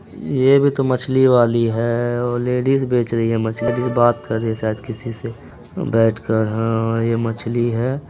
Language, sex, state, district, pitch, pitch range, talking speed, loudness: Hindi, male, Bihar, Araria, 120 Hz, 115-125 Hz, 185 wpm, -18 LUFS